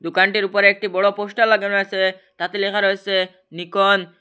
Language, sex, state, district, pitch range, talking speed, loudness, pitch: Bengali, male, Assam, Hailakandi, 185-200 Hz, 170 wpm, -18 LUFS, 195 Hz